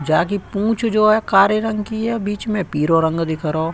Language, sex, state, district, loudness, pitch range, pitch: Hindi, male, Uttar Pradesh, Budaun, -18 LUFS, 165-215 Hz, 205 Hz